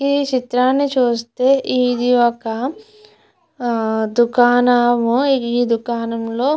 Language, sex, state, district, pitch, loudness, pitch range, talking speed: Telugu, female, Andhra Pradesh, Chittoor, 245 Hz, -17 LUFS, 235-265 Hz, 75 wpm